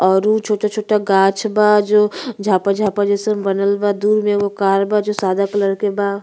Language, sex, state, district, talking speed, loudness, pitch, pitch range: Bhojpuri, female, Uttar Pradesh, Ghazipur, 195 wpm, -16 LUFS, 205 Hz, 200-210 Hz